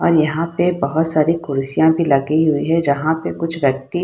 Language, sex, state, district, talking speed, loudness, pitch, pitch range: Hindi, female, Bihar, Saharsa, 220 wpm, -16 LUFS, 160 Hz, 140-165 Hz